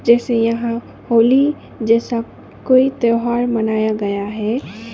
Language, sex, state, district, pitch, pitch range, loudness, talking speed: Hindi, female, Sikkim, Gangtok, 230 Hz, 225-240 Hz, -17 LUFS, 110 wpm